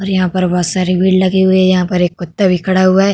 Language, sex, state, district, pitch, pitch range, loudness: Hindi, female, Uttar Pradesh, Hamirpur, 185 Hz, 180-190 Hz, -13 LUFS